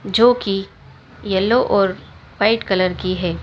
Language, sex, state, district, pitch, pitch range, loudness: Hindi, female, Madhya Pradesh, Dhar, 195 Hz, 185-225 Hz, -18 LUFS